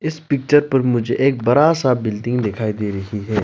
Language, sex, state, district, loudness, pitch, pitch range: Hindi, male, Arunachal Pradesh, Lower Dibang Valley, -18 LUFS, 120 Hz, 110-140 Hz